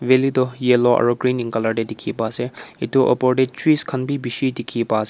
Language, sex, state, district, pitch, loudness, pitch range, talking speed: Nagamese, male, Nagaland, Kohima, 125 Hz, -19 LUFS, 115-130 Hz, 245 wpm